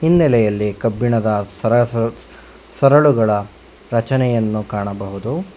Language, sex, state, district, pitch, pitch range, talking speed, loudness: Kannada, male, Karnataka, Bangalore, 115 Hz, 105-125 Hz, 55 wpm, -17 LUFS